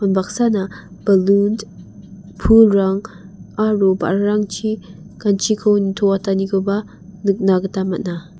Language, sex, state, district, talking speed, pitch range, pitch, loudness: Garo, female, Meghalaya, West Garo Hills, 70 wpm, 190-210 Hz, 195 Hz, -17 LUFS